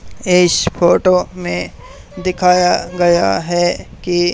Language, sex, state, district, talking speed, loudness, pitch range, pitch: Hindi, male, Haryana, Charkhi Dadri, 95 wpm, -14 LUFS, 115-180 Hz, 175 Hz